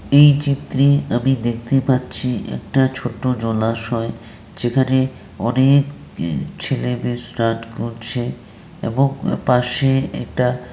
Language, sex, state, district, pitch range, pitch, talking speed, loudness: Bengali, male, West Bengal, Malda, 120-135 Hz, 125 Hz, 90 wpm, -19 LUFS